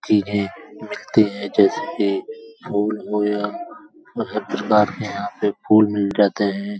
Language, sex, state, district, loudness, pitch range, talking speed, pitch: Hindi, male, Uttar Pradesh, Hamirpur, -20 LUFS, 100-110 Hz, 140 wpm, 105 Hz